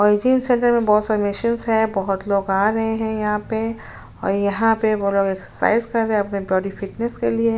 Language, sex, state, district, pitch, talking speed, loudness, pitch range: Hindi, female, Maharashtra, Chandrapur, 210 Hz, 235 wpm, -20 LUFS, 195-225 Hz